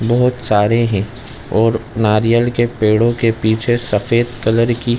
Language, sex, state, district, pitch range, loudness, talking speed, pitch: Hindi, male, Chhattisgarh, Bilaspur, 110-120 Hz, -15 LUFS, 155 wpm, 115 Hz